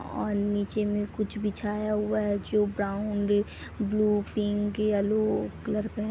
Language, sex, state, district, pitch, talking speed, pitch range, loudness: Hindi, female, Chhattisgarh, Kabirdham, 210 Hz, 145 wpm, 205-215 Hz, -28 LUFS